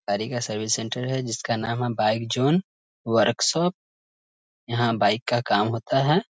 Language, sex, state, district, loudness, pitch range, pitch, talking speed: Hindi, male, Bihar, Muzaffarpur, -24 LUFS, 110-130 Hz, 120 Hz, 160 wpm